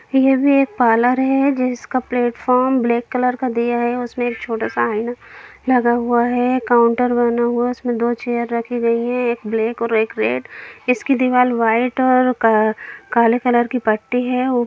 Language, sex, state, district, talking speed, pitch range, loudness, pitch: Hindi, female, Bihar, Jamui, 185 wpm, 235-250 Hz, -17 LUFS, 240 Hz